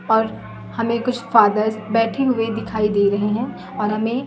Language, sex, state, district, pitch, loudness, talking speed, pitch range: Hindi, female, Chhattisgarh, Raipur, 220 Hz, -19 LUFS, 170 wpm, 210-230 Hz